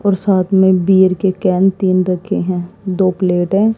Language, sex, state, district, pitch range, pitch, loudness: Hindi, female, Haryana, Jhajjar, 185-195 Hz, 190 Hz, -14 LUFS